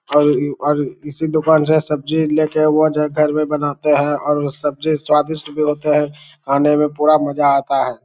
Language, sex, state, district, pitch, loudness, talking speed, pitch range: Hindi, male, Bihar, Lakhisarai, 150 Hz, -16 LUFS, 200 wpm, 145-155 Hz